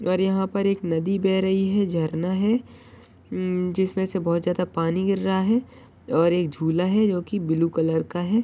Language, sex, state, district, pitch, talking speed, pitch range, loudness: Hindi, male, Maharashtra, Dhule, 185 Hz, 190 wpm, 170-195 Hz, -23 LUFS